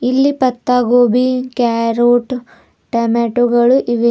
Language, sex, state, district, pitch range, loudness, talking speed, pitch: Kannada, female, Karnataka, Bidar, 235-255 Hz, -14 LUFS, 90 wpm, 245 Hz